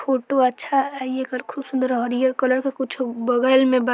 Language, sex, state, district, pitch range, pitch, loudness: Bhojpuri, female, Bihar, Saran, 250-265 Hz, 260 Hz, -21 LUFS